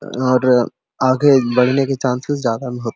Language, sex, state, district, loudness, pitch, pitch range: Hindi, male, Jharkhand, Sahebganj, -16 LUFS, 125 Hz, 125-135 Hz